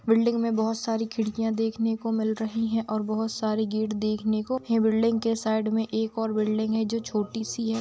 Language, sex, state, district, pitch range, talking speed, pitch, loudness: Hindi, female, Bihar, Saharsa, 220-225 Hz, 225 wpm, 220 Hz, -27 LUFS